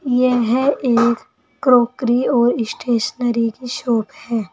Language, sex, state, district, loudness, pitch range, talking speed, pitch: Hindi, female, Uttar Pradesh, Saharanpur, -18 LUFS, 235-255 Hz, 105 wpm, 245 Hz